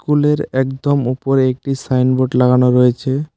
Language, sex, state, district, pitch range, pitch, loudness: Bengali, male, West Bengal, Cooch Behar, 125-140 Hz, 130 Hz, -15 LUFS